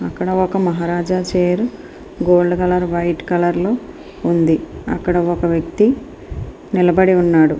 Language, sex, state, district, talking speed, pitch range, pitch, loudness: Telugu, female, Andhra Pradesh, Srikakulam, 120 wpm, 170-185 Hz, 180 Hz, -17 LUFS